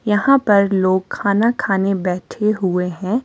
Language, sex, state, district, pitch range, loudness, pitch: Hindi, female, Himachal Pradesh, Shimla, 185-215 Hz, -17 LUFS, 200 Hz